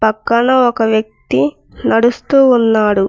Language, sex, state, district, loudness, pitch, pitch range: Telugu, female, Telangana, Mahabubabad, -13 LUFS, 220 Hz, 210-240 Hz